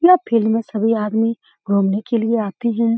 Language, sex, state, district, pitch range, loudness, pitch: Hindi, female, Bihar, Saran, 215-230 Hz, -18 LUFS, 225 Hz